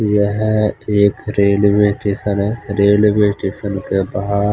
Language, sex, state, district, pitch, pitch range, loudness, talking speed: Hindi, male, Odisha, Khordha, 100 Hz, 100-105 Hz, -16 LUFS, 120 wpm